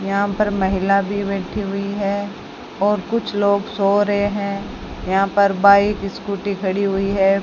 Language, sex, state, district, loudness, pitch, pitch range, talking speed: Hindi, female, Rajasthan, Bikaner, -19 LUFS, 200 Hz, 195-205 Hz, 160 wpm